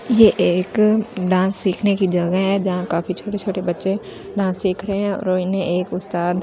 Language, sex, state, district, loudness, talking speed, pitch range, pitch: Hindi, female, Delhi, New Delhi, -19 LUFS, 195 wpm, 180-200 Hz, 190 Hz